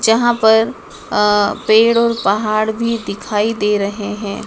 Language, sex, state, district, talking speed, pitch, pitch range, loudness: Hindi, female, Madhya Pradesh, Dhar, 175 wpm, 215 Hz, 210-230 Hz, -15 LUFS